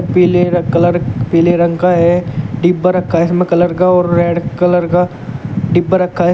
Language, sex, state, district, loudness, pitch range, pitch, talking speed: Hindi, male, Uttar Pradesh, Shamli, -13 LUFS, 170-180 Hz, 175 Hz, 190 wpm